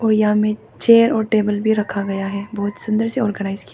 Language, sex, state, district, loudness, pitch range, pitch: Hindi, female, Arunachal Pradesh, Papum Pare, -18 LUFS, 205-220 Hz, 210 Hz